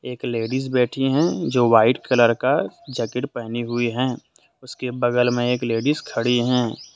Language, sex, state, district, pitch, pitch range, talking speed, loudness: Hindi, male, Jharkhand, Deoghar, 125 Hz, 120-130 Hz, 165 wpm, -21 LUFS